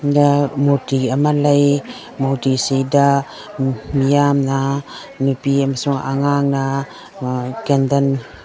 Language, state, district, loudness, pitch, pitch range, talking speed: Manipuri, Manipur, Imphal West, -17 LUFS, 140 Hz, 135-140 Hz, 80 wpm